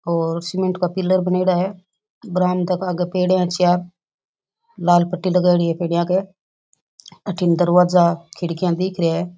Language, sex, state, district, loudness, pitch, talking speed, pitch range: Rajasthani, female, Rajasthan, Nagaur, -19 LUFS, 180 Hz, 145 wpm, 175-185 Hz